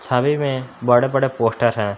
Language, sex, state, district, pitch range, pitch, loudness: Hindi, male, Jharkhand, Palamu, 120-135 Hz, 125 Hz, -19 LUFS